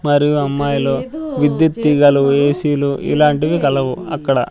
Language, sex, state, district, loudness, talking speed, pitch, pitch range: Telugu, male, Andhra Pradesh, Sri Satya Sai, -15 LUFS, 120 wpm, 145 Hz, 140-150 Hz